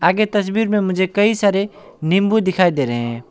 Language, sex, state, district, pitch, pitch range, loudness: Hindi, male, West Bengal, Alipurduar, 195 Hz, 175-205 Hz, -17 LUFS